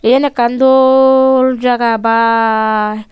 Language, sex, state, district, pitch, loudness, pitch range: Chakma, female, Tripura, Unakoti, 240 Hz, -11 LUFS, 225-265 Hz